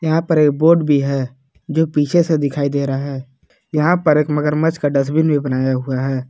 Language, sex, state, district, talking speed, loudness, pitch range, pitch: Hindi, male, Jharkhand, Palamu, 220 wpm, -17 LUFS, 135-160 Hz, 145 Hz